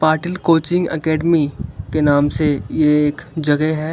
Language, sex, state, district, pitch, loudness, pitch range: Hindi, female, Maharashtra, Chandrapur, 155 Hz, -17 LUFS, 145-160 Hz